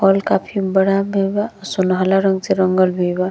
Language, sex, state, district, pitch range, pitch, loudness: Bhojpuri, female, Uttar Pradesh, Deoria, 185-195 Hz, 195 Hz, -17 LUFS